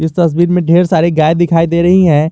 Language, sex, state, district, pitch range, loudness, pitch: Hindi, male, Jharkhand, Garhwa, 160-175 Hz, -11 LUFS, 170 Hz